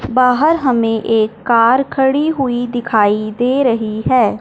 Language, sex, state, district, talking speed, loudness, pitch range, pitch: Hindi, male, Punjab, Fazilka, 135 wpm, -14 LUFS, 225-265 Hz, 245 Hz